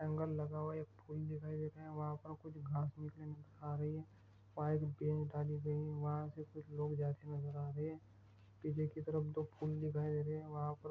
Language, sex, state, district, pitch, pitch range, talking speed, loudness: Hindi, male, Maharashtra, Aurangabad, 150 Hz, 150-155 Hz, 240 wpm, -43 LUFS